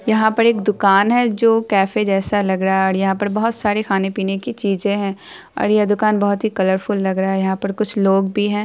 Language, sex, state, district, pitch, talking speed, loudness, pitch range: Hindi, female, Bihar, Araria, 205 Hz, 255 wpm, -17 LUFS, 195-215 Hz